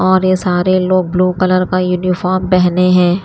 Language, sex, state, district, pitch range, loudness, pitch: Hindi, female, Haryana, Rohtak, 180-185 Hz, -13 LUFS, 185 Hz